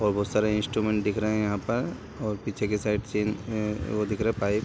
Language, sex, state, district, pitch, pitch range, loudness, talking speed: Hindi, male, Bihar, Sitamarhi, 105 Hz, 105-110 Hz, -28 LUFS, 245 wpm